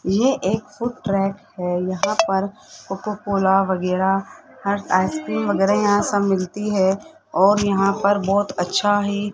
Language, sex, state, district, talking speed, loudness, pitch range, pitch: Hindi, male, Rajasthan, Jaipur, 150 wpm, -20 LUFS, 190-205 Hz, 195 Hz